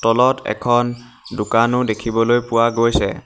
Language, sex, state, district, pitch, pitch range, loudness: Assamese, male, Assam, Hailakandi, 115 Hz, 115-120 Hz, -17 LUFS